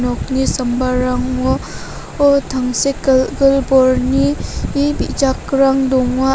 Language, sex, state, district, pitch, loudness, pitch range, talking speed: Garo, female, Meghalaya, North Garo Hills, 265 Hz, -15 LUFS, 255-275 Hz, 75 wpm